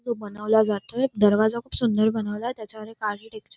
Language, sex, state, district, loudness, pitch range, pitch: Marathi, female, Maharashtra, Dhule, -24 LUFS, 210-230 Hz, 215 Hz